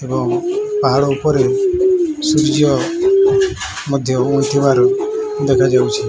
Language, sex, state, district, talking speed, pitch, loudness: Odia, male, Odisha, Nuapada, 90 wpm, 335 Hz, -15 LUFS